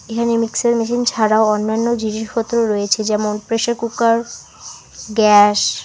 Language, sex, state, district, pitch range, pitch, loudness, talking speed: Bengali, female, West Bengal, Alipurduar, 210-235 Hz, 220 Hz, -16 LUFS, 125 wpm